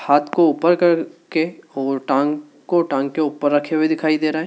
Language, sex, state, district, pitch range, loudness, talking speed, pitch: Hindi, male, Madhya Pradesh, Dhar, 145-165 Hz, -19 LUFS, 200 wpm, 155 Hz